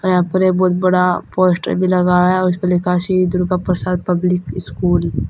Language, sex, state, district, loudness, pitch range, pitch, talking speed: Hindi, female, Uttar Pradesh, Saharanpur, -16 LUFS, 180-185 Hz, 180 Hz, 190 wpm